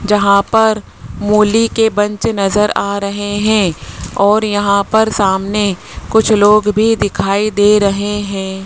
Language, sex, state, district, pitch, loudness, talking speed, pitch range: Hindi, male, Rajasthan, Jaipur, 205 Hz, -13 LUFS, 140 wpm, 200-215 Hz